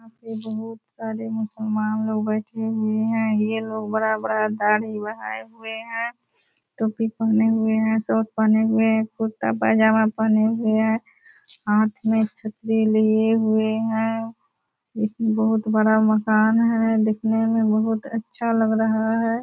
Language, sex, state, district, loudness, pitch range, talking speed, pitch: Hindi, female, Bihar, Purnia, -21 LUFS, 220-225 Hz, 145 wpm, 220 Hz